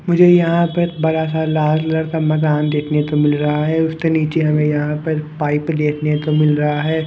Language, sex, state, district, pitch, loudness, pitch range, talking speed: Hindi, male, Bihar, West Champaran, 155 Hz, -16 LUFS, 150-160 Hz, 210 wpm